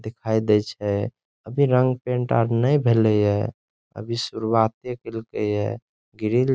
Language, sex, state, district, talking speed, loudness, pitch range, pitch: Maithili, male, Bihar, Saharsa, 155 wpm, -23 LUFS, 110-125 Hz, 115 Hz